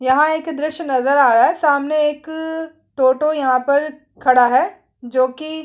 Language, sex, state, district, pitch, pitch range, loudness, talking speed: Hindi, female, Chhattisgarh, Kabirdham, 300 Hz, 260-315 Hz, -17 LUFS, 160 wpm